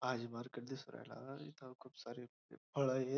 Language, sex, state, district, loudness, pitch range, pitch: Marathi, male, Maharashtra, Dhule, -46 LUFS, 120-135 Hz, 130 Hz